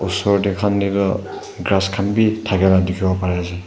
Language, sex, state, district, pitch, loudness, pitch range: Nagamese, male, Nagaland, Kohima, 95 Hz, -18 LUFS, 95-100 Hz